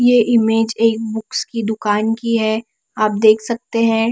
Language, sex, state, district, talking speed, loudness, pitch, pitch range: Hindi, female, Bihar, West Champaran, 175 wpm, -17 LUFS, 225 Hz, 220-230 Hz